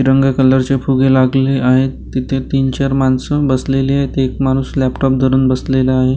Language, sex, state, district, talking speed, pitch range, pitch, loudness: Marathi, male, Maharashtra, Gondia, 165 wpm, 130-135 Hz, 135 Hz, -14 LUFS